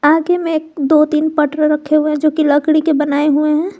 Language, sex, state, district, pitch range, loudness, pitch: Hindi, female, Jharkhand, Garhwa, 300-315 Hz, -14 LUFS, 305 Hz